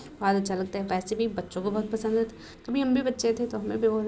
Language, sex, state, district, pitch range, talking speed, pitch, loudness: Hindi, female, Uttar Pradesh, Muzaffarnagar, 195-230 Hz, 310 wpm, 220 Hz, -28 LUFS